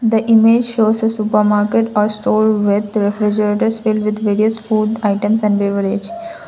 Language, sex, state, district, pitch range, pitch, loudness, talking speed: English, female, Assam, Kamrup Metropolitan, 210-225 Hz, 215 Hz, -15 LUFS, 140 wpm